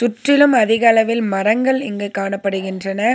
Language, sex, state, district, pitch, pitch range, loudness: Tamil, female, Tamil Nadu, Nilgiris, 220 Hz, 195-240 Hz, -16 LUFS